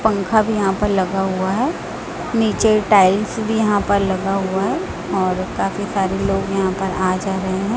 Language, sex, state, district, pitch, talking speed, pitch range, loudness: Hindi, female, Chhattisgarh, Raipur, 195 Hz, 195 wpm, 190-210 Hz, -18 LUFS